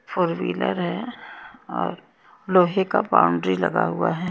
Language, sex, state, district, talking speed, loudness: Hindi, female, Haryana, Jhajjar, 125 wpm, -22 LUFS